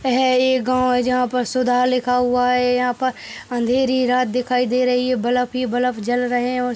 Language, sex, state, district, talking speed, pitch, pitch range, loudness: Hindi, male, Bihar, Darbhanga, 220 wpm, 250 Hz, 250-255 Hz, -19 LUFS